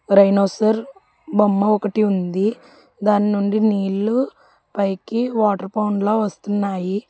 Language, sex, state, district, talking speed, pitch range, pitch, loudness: Telugu, female, Telangana, Hyderabad, 95 wpm, 200-215 Hz, 210 Hz, -19 LUFS